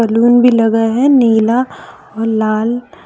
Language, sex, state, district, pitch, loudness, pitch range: Hindi, female, Jharkhand, Deoghar, 230 Hz, -12 LUFS, 225-245 Hz